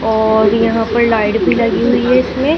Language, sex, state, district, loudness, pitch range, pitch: Hindi, female, Madhya Pradesh, Dhar, -13 LUFS, 220-245 Hz, 225 Hz